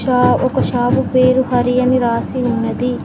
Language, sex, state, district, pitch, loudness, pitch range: Telugu, female, Telangana, Mahabubabad, 250 Hz, -15 LUFS, 245-255 Hz